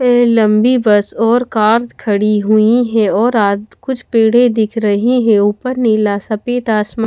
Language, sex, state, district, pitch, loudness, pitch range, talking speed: Hindi, female, Odisha, Khordha, 225 Hz, -13 LUFS, 210-240 Hz, 160 wpm